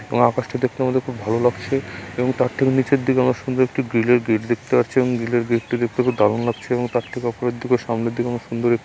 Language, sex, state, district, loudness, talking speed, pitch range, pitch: Bengali, male, West Bengal, Jalpaiguri, -20 LUFS, 260 wpm, 115-130 Hz, 120 Hz